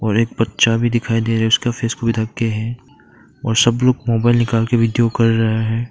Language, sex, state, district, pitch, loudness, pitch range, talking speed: Hindi, male, Arunachal Pradesh, Papum Pare, 115 Hz, -17 LUFS, 115-120 Hz, 225 wpm